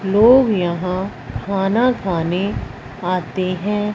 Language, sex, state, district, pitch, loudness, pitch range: Hindi, female, Punjab, Fazilka, 190 Hz, -18 LUFS, 180-210 Hz